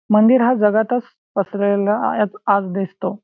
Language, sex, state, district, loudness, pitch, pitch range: Marathi, male, Maharashtra, Chandrapur, -18 LUFS, 210 Hz, 200-225 Hz